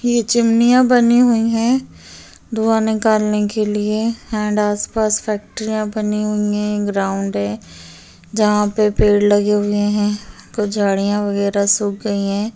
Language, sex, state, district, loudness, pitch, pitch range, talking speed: Hindi, female, Maharashtra, Chandrapur, -17 LUFS, 210 Hz, 205-220 Hz, 145 wpm